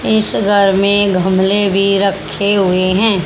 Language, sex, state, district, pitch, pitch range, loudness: Hindi, male, Haryana, Jhajjar, 195 Hz, 190-205 Hz, -13 LUFS